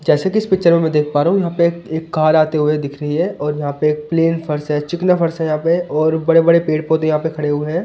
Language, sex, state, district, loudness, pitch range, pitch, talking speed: Hindi, male, Delhi, New Delhi, -16 LUFS, 150-170 Hz, 160 Hz, 305 wpm